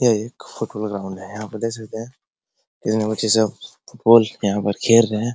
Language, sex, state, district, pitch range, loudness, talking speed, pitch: Hindi, male, Bihar, Araria, 105-115 Hz, -20 LUFS, 235 wpm, 110 Hz